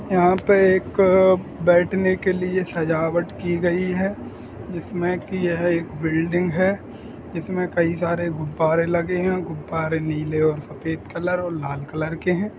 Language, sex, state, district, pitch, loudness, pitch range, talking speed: Hindi, female, Bihar, Sitamarhi, 175 Hz, -21 LUFS, 160-185 Hz, 155 wpm